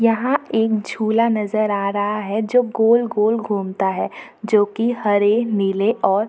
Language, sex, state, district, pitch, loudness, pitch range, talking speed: Hindi, female, Jharkhand, Jamtara, 215 Hz, -19 LUFS, 205-230 Hz, 160 wpm